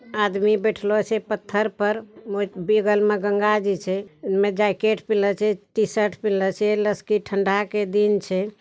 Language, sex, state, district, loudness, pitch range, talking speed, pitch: Angika, male, Bihar, Bhagalpur, -22 LUFS, 200-210 Hz, 200 wpm, 210 Hz